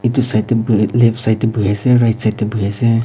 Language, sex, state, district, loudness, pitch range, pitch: Nagamese, male, Nagaland, Kohima, -15 LUFS, 110-120 Hz, 115 Hz